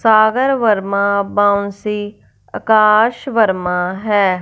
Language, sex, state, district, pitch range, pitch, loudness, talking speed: Hindi, female, Punjab, Fazilka, 200-220 Hz, 205 Hz, -15 LUFS, 80 wpm